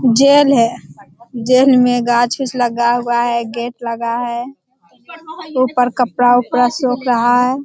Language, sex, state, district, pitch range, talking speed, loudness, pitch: Hindi, female, Bihar, Jamui, 240-255 Hz, 125 wpm, -14 LUFS, 245 Hz